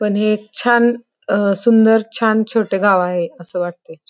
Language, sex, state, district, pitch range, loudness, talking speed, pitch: Marathi, female, Maharashtra, Pune, 180-225 Hz, -16 LUFS, 175 wpm, 210 Hz